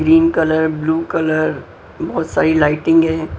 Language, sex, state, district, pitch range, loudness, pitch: Hindi, female, Punjab, Pathankot, 155-160 Hz, -16 LUFS, 160 Hz